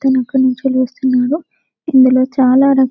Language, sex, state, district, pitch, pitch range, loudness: Telugu, female, Telangana, Karimnagar, 260 Hz, 255-270 Hz, -13 LUFS